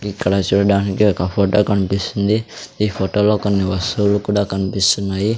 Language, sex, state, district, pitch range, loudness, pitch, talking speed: Telugu, male, Andhra Pradesh, Sri Satya Sai, 95-105 Hz, -17 LUFS, 100 Hz, 120 wpm